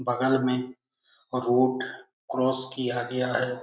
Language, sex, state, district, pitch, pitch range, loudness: Hindi, male, Bihar, Jamui, 125 Hz, 125-130 Hz, -27 LUFS